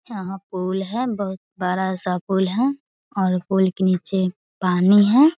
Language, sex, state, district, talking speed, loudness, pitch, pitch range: Hindi, female, Bihar, Muzaffarpur, 165 wpm, -21 LUFS, 190 Hz, 185-205 Hz